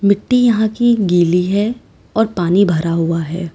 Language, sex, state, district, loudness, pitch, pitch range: Hindi, female, Uttar Pradesh, Lalitpur, -15 LUFS, 195 Hz, 170-220 Hz